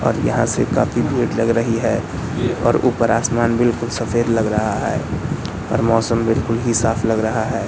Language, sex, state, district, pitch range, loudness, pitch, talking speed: Hindi, male, Madhya Pradesh, Katni, 110-115 Hz, -18 LUFS, 115 Hz, 185 wpm